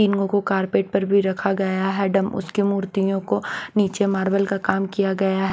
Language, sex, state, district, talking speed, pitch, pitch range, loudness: Hindi, female, Maharashtra, Washim, 205 wpm, 195 Hz, 195-200 Hz, -21 LUFS